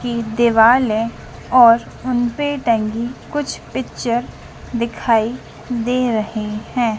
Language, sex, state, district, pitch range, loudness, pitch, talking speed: Hindi, female, Madhya Pradesh, Dhar, 225-250 Hz, -18 LUFS, 235 Hz, 105 wpm